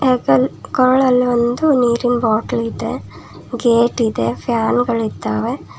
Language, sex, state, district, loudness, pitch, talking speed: Kannada, female, Karnataka, Bangalore, -16 LUFS, 235 Hz, 105 wpm